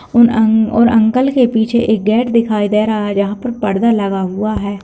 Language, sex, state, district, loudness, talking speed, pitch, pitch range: Hindi, female, Bihar, Madhepura, -13 LUFS, 225 wpm, 220 Hz, 205-235 Hz